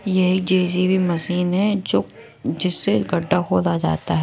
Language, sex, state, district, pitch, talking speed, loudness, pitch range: Hindi, male, Odisha, Malkangiri, 180 Hz, 140 wpm, -20 LUFS, 170-185 Hz